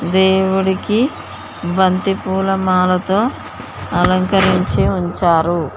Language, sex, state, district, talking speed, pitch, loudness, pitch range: Telugu, female, Telangana, Mahabubabad, 50 wpm, 190 Hz, -16 LUFS, 180-190 Hz